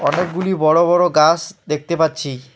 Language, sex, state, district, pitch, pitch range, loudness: Bengali, male, West Bengal, Alipurduar, 160 Hz, 150-180 Hz, -16 LUFS